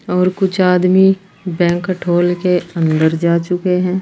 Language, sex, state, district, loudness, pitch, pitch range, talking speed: Hindi, female, Uttar Pradesh, Saharanpur, -15 LUFS, 180 Hz, 175-185 Hz, 150 wpm